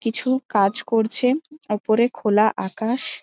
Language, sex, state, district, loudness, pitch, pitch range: Bengali, female, West Bengal, Malda, -21 LUFS, 225 Hz, 215-255 Hz